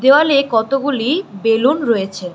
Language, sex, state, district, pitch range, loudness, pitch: Bengali, female, West Bengal, Cooch Behar, 225-280 Hz, -15 LUFS, 255 Hz